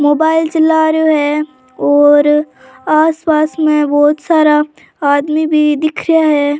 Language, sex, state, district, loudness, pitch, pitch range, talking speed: Rajasthani, female, Rajasthan, Churu, -12 LUFS, 305 Hz, 290-315 Hz, 135 wpm